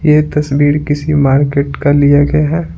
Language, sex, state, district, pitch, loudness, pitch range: Hindi, male, Bihar, Patna, 145 Hz, -12 LUFS, 145-150 Hz